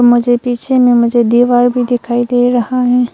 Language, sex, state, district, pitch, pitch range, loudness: Hindi, female, Arunachal Pradesh, Longding, 245 Hz, 240-245 Hz, -12 LUFS